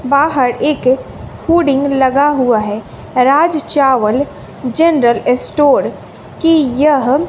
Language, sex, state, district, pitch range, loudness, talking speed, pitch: Hindi, female, Bihar, West Champaran, 250-295 Hz, -13 LUFS, 100 wpm, 275 Hz